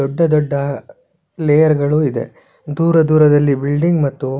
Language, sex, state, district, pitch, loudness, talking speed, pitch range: Kannada, male, Karnataka, Shimoga, 145 Hz, -15 LUFS, 120 wpm, 140-155 Hz